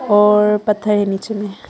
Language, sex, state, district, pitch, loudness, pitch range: Hindi, female, Arunachal Pradesh, Papum Pare, 210 Hz, -16 LUFS, 205-210 Hz